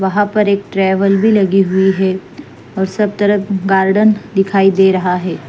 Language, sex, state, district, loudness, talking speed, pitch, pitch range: Hindi, female, Punjab, Fazilka, -13 LUFS, 175 wpm, 195 Hz, 190-205 Hz